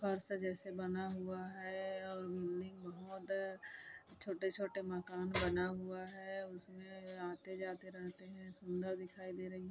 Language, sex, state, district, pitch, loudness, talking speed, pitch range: Hindi, female, Chhattisgarh, Kabirdham, 185 Hz, -44 LUFS, 155 wpm, 185-190 Hz